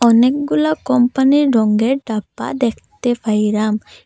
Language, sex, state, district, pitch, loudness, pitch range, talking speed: Bengali, female, Assam, Hailakandi, 235 Hz, -16 LUFS, 215-255 Hz, 90 wpm